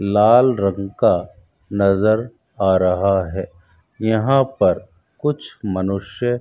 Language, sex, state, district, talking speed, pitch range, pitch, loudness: Hindi, male, Rajasthan, Bikaner, 110 wpm, 95-110 Hz, 100 Hz, -18 LUFS